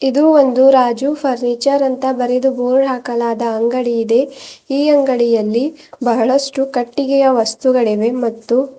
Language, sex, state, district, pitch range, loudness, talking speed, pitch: Kannada, female, Karnataka, Bidar, 235-270 Hz, -15 LUFS, 110 wpm, 255 Hz